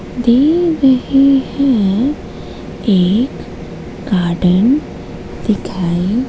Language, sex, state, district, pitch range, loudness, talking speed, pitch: Hindi, female, Madhya Pradesh, Katni, 190-275 Hz, -14 LUFS, 55 wpm, 240 Hz